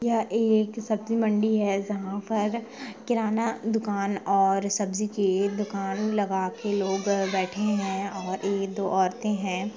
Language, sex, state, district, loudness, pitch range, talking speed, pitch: Hindi, female, Bihar, Gopalganj, -26 LUFS, 195-215 Hz, 140 wpm, 205 Hz